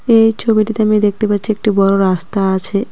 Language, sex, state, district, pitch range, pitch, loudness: Bengali, female, West Bengal, Cooch Behar, 195-220 Hz, 210 Hz, -14 LUFS